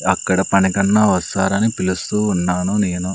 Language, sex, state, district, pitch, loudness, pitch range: Telugu, male, Andhra Pradesh, Sri Satya Sai, 95 Hz, -17 LUFS, 95-105 Hz